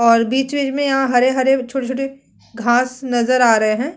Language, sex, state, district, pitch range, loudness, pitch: Hindi, female, Chhattisgarh, Sukma, 240-270 Hz, -17 LUFS, 255 Hz